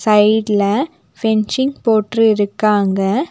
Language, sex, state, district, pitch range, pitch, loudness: Tamil, female, Tamil Nadu, Nilgiris, 205-225 Hz, 215 Hz, -15 LUFS